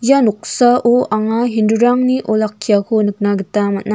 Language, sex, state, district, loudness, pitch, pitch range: Garo, female, Meghalaya, North Garo Hills, -15 LUFS, 220 Hz, 210-245 Hz